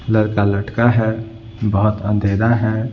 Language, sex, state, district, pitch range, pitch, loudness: Hindi, male, Bihar, Patna, 105-110 Hz, 110 Hz, -17 LUFS